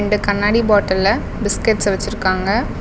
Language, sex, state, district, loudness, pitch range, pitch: Tamil, female, Tamil Nadu, Namakkal, -17 LUFS, 195-210 Hz, 205 Hz